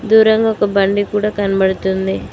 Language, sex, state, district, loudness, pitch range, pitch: Telugu, female, Telangana, Mahabubabad, -15 LUFS, 190-220 Hz, 205 Hz